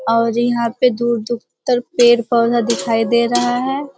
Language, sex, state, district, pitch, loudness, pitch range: Hindi, male, Bihar, Jamui, 240 Hz, -16 LUFS, 235-245 Hz